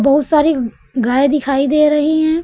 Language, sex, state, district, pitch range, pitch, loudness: Hindi, female, Uttar Pradesh, Lucknow, 275-300 Hz, 290 Hz, -14 LUFS